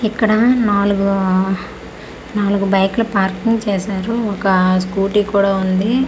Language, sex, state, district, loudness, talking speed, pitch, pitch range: Telugu, female, Andhra Pradesh, Manyam, -16 LUFS, 110 wpm, 200 Hz, 190-215 Hz